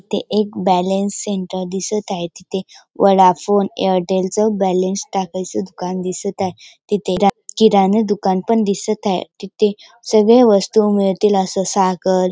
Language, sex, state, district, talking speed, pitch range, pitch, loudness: Marathi, female, Maharashtra, Dhule, 135 wpm, 185-205 Hz, 195 Hz, -17 LUFS